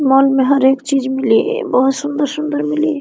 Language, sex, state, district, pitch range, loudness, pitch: Hindi, female, Jharkhand, Sahebganj, 265-295 Hz, -15 LUFS, 275 Hz